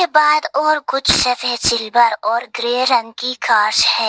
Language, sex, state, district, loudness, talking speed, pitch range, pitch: Hindi, female, Assam, Hailakandi, -15 LUFS, 160 wpm, 235-300 Hz, 250 Hz